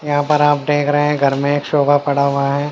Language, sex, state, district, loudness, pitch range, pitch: Hindi, male, Haryana, Jhajjar, -15 LUFS, 140-145 Hz, 145 Hz